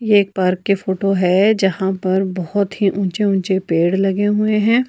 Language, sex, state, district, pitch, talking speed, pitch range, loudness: Hindi, female, Himachal Pradesh, Shimla, 195 Hz, 195 wpm, 190-205 Hz, -17 LUFS